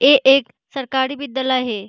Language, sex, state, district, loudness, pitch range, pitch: Hindi, female, Uttar Pradesh, Hamirpur, -17 LUFS, 255-275 Hz, 265 Hz